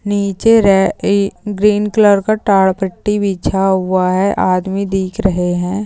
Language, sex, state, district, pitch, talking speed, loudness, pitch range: Hindi, female, West Bengal, Dakshin Dinajpur, 195 Hz, 135 wpm, -14 LUFS, 190-205 Hz